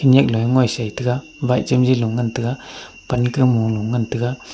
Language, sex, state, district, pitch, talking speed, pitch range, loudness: Wancho, male, Arunachal Pradesh, Longding, 125 Hz, 185 wpm, 115-130 Hz, -19 LUFS